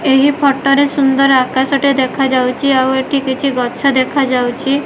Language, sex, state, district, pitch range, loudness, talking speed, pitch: Odia, female, Odisha, Malkangiri, 260-275 Hz, -13 LUFS, 150 wpm, 270 Hz